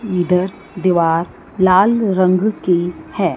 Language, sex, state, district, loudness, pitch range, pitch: Hindi, female, Chandigarh, Chandigarh, -16 LUFS, 175-195 Hz, 185 Hz